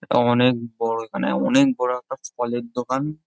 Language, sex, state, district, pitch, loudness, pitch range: Bengali, male, West Bengal, Jhargram, 125 Hz, -22 LUFS, 120-130 Hz